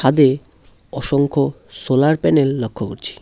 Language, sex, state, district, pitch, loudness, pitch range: Bengali, male, West Bengal, Cooch Behar, 140 Hz, -18 LUFS, 130-145 Hz